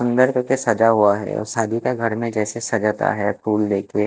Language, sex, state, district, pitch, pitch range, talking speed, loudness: Hindi, male, Bihar, West Champaran, 115 Hz, 105-120 Hz, 220 wpm, -20 LUFS